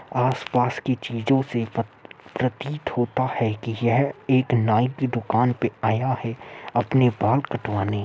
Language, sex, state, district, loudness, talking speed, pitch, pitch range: Hindi, male, Uttar Pradesh, Muzaffarnagar, -23 LUFS, 150 wpm, 120 Hz, 115-130 Hz